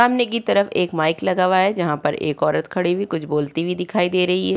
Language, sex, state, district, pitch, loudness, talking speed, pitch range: Hindi, female, Uttar Pradesh, Jyotiba Phule Nagar, 180 Hz, -20 LUFS, 275 wpm, 165-190 Hz